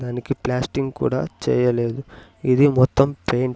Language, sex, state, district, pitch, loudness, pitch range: Telugu, male, Andhra Pradesh, Sri Satya Sai, 125 Hz, -20 LUFS, 120-135 Hz